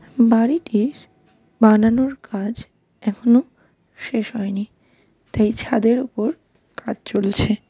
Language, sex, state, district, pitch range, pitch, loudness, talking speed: Bengali, female, West Bengal, Darjeeling, 215-245 Hz, 225 Hz, -19 LUFS, 100 wpm